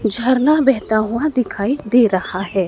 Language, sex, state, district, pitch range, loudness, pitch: Hindi, female, Madhya Pradesh, Dhar, 205-260 Hz, -17 LUFS, 235 Hz